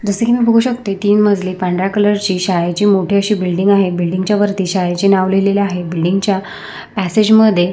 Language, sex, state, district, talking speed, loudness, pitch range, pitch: Marathi, female, Maharashtra, Sindhudurg, 200 wpm, -14 LUFS, 185-205 Hz, 195 Hz